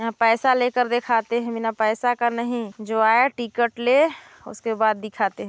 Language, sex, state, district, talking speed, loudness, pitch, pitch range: Hindi, female, Chhattisgarh, Sarguja, 185 wpm, -21 LUFS, 235 Hz, 225-245 Hz